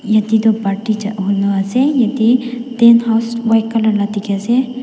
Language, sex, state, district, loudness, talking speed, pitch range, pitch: Nagamese, female, Nagaland, Dimapur, -14 LUFS, 175 wpm, 205-235 Hz, 225 Hz